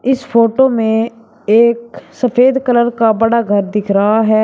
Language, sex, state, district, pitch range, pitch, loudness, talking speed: Hindi, male, Uttar Pradesh, Shamli, 220-245 Hz, 230 Hz, -13 LUFS, 160 wpm